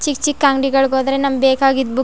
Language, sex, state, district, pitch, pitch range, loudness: Kannada, female, Karnataka, Chamarajanagar, 270 Hz, 265-275 Hz, -15 LUFS